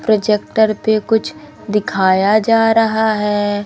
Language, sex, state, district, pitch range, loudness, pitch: Hindi, male, Madhya Pradesh, Umaria, 205-220 Hz, -15 LUFS, 215 Hz